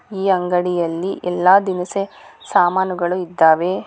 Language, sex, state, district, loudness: Kannada, female, Karnataka, Bangalore, -17 LUFS